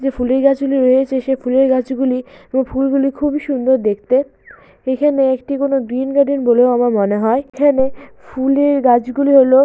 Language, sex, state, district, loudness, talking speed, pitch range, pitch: Bengali, female, West Bengal, Malda, -15 LUFS, 160 wpm, 255-275 Hz, 265 Hz